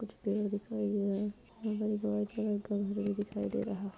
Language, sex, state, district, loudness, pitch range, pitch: Hindi, female, Uttar Pradesh, Jyotiba Phule Nagar, -35 LUFS, 205-215 Hz, 210 Hz